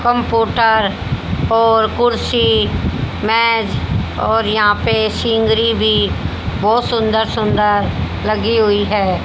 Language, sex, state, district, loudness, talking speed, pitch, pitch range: Hindi, female, Haryana, Rohtak, -15 LUFS, 95 wpm, 220 Hz, 195-225 Hz